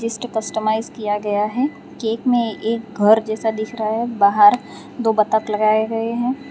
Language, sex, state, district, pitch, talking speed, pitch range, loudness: Hindi, female, Gujarat, Valsad, 220 Hz, 165 wpm, 215-230 Hz, -19 LUFS